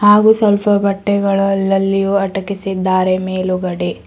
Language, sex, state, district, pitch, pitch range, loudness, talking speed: Kannada, female, Karnataka, Bidar, 195 Hz, 185-200 Hz, -15 LUFS, 90 wpm